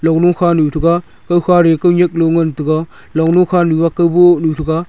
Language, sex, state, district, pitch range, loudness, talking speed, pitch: Wancho, male, Arunachal Pradesh, Longding, 160-175 Hz, -13 LUFS, 160 wpm, 165 Hz